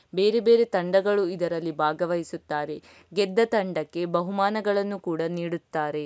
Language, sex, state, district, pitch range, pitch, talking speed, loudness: Kannada, female, Karnataka, Dakshina Kannada, 165-200 Hz, 175 Hz, 100 wpm, -25 LUFS